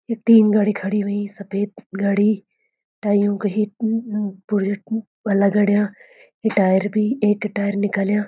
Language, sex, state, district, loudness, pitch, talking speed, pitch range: Garhwali, female, Uttarakhand, Uttarkashi, -20 LUFS, 205 Hz, 115 wpm, 200-215 Hz